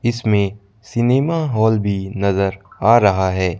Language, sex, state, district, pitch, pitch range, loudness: Hindi, male, Madhya Pradesh, Bhopal, 105 Hz, 100-115 Hz, -17 LUFS